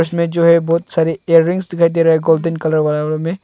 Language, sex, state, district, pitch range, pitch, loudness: Hindi, male, Arunachal Pradesh, Longding, 160-170 Hz, 165 Hz, -14 LUFS